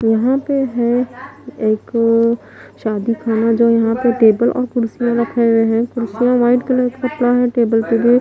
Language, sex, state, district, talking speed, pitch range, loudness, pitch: Hindi, female, Bihar, Katihar, 175 wpm, 230-250 Hz, -16 LUFS, 235 Hz